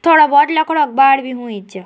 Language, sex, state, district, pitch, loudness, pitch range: Garhwali, female, Uttarakhand, Tehri Garhwal, 270 Hz, -12 LUFS, 245-310 Hz